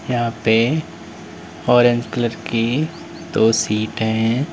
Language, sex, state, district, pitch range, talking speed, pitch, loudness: Hindi, male, Uttar Pradesh, Lalitpur, 110-150 Hz, 105 wpm, 120 Hz, -18 LUFS